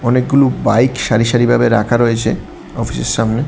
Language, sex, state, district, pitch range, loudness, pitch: Bengali, male, Tripura, West Tripura, 115-125 Hz, -14 LUFS, 120 Hz